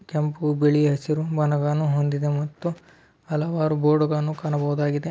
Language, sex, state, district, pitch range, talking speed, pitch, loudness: Kannada, male, Karnataka, Belgaum, 145-155 Hz, 115 wpm, 150 Hz, -23 LUFS